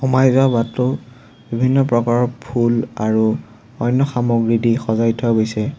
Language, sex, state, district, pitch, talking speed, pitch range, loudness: Assamese, male, Assam, Sonitpur, 120 Hz, 125 wpm, 115-125 Hz, -17 LUFS